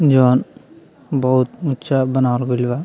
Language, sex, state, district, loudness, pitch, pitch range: Bhojpuri, male, Bihar, Muzaffarpur, -17 LUFS, 130 Hz, 125-135 Hz